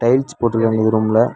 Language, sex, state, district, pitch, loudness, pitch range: Tamil, male, Tamil Nadu, Nilgiris, 115 Hz, -17 LUFS, 110-120 Hz